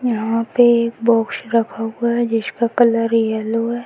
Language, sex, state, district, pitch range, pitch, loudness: Hindi, female, Uttar Pradesh, Varanasi, 225-235 Hz, 230 Hz, -17 LUFS